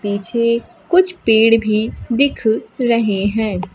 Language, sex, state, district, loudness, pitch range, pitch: Hindi, female, Bihar, Kaimur, -16 LUFS, 215-235 Hz, 225 Hz